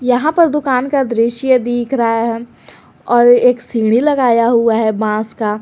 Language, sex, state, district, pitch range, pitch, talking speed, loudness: Hindi, female, Jharkhand, Garhwa, 230-255 Hz, 240 Hz, 170 wpm, -13 LUFS